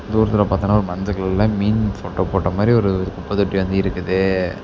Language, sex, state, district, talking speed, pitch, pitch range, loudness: Tamil, male, Tamil Nadu, Namakkal, 180 wpm, 95 Hz, 95-105 Hz, -19 LUFS